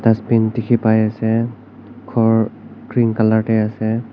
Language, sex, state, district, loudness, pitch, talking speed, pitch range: Nagamese, male, Nagaland, Kohima, -17 LUFS, 110 Hz, 130 wpm, 110-115 Hz